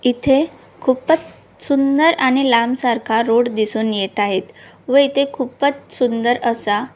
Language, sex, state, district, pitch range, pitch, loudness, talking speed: Marathi, female, Maharashtra, Solapur, 230-275 Hz, 250 Hz, -17 LUFS, 130 wpm